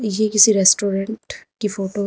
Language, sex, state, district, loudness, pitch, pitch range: Hindi, female, Uttar Pradesh, Lucknow, -16 LUFS, 210 Hz, 195-215 Hz